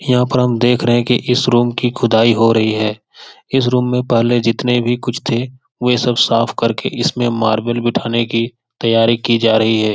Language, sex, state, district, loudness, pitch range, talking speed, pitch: Hindi, male, Bihar, Jahanabad, -15 LUFS, 115-125 Hz, 210 wpm, 120 Hz